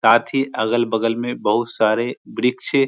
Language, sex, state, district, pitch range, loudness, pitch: Hindi, male, Bihar, Supaul, 115-125 Hz, -20 LUFS, 120 Hz